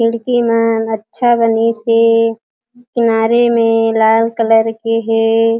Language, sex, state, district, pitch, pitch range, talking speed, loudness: Chhattisgarhi, female, Chhattisgarh, Jashpur, 230 Hz, 225-230 Hz, 105 wpm, -13 LUFS